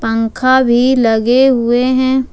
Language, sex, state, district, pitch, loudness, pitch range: Hindi, female, Jharkhand, Ranchi, 250 Hz, -12 LUFS, 235-260 Hz